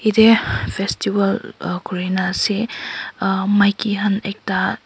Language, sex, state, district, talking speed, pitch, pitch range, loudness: Nagamese, female, Nagaland, Kohima, 110 wpm, 200 Hz, 195-215 Hz, -19 LUFS